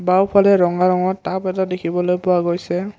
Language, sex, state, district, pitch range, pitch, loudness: Assamese, male, Assam, Kamrup Metropolitan, 180-190 Hz, 180 Hz, -17 LUFS